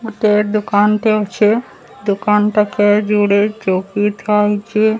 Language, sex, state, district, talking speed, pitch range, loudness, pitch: Odia, male, Odisha, Sambalpur, 110 wpm, 205-215 Hz, -15 LUFS, 210 Hz